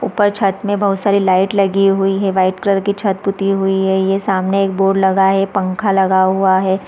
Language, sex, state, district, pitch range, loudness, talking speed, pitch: Hindi, female, Chhattisgarh, Raigarh, 190-200 Hz, -15 LUFS, 245 wpm, 195 Hz